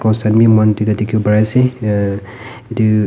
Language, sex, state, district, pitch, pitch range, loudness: Nagamese, male, Nagaland, Kohima, 110 Hz, 105-115 Hz, -14 LUFS